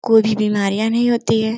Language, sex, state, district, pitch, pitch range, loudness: Hindi, female, Uttar Pradesh, Gorakhpur, 220 Hz, 215-230 Hz, -17 LUFS